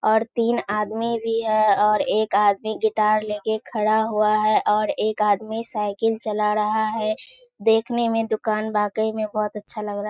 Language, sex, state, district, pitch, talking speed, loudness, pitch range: Hindi, female, Bihar, Kishanganj, 215 Hz, 170 wpm, -22 LUFS, 210-225 Hz